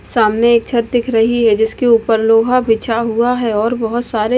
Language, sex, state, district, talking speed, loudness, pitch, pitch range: Hindi, female, Odisha, Malkangiri, 205 wpm, -14 LUFS, 230 Hz, 225-240 Hz